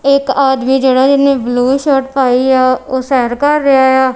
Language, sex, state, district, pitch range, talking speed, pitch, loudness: Punjabi, female, Punjab, Kapurthala, 255-275 Hz, 185 wpm, 265 Hz, -11 LUFS